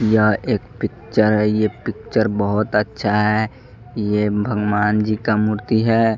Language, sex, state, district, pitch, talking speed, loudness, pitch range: Hindi, male, Bihar, West Champaran, 110 Hz, 145 wpm, -19 LUFS, 105-110 Hz